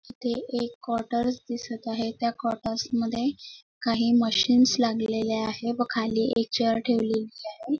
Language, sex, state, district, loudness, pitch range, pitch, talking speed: Marathi, female, Maharashtra, Nagpur, -26 LUFS, 225-245 Hz, 235 Hz, 140 wpm